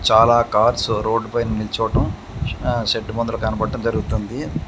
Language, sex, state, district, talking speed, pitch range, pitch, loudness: Telugu, male, Telangana, Komaram Bheem, 115 wpm, 110-115 Hz, 115 Hz, -20 LUFS